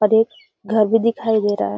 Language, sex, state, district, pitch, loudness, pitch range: Hindi, female, Bihar, Gaya, 220 Hz, -18 LUFS, 210-230 Hz